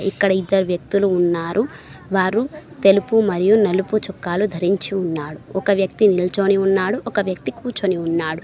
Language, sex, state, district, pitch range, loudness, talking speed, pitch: Telugu, female, Telangana, Mahabubabad, 180-205 Hz, -19 LUFS, 135 wpm, 195 Hz